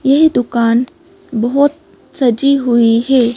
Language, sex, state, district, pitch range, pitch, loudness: Hindi, female, Madhya Pradesh, Bhopal, 235-285 Hz, 255 Hz, -13 LUFS